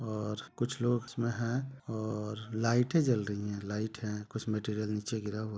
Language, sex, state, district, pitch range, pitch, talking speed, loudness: Hindi, male, Chhattisgarh, Rajnandgaon, 105-120 Hz, 110 Hz, 185 wpm, -34 LUFS